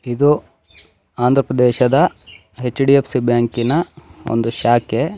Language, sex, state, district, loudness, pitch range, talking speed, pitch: Kannada, male, Karnataka, Shimoga, -16 LUFS, 115-135 Hz, 80 wpm, 120 Hz